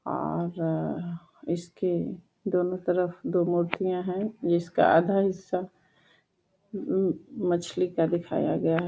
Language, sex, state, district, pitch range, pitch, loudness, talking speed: Hindi, female, Uttar Pradesh, Deoria, 170-185 Hz, 180 Hz, -28 LUFS, 130 wpm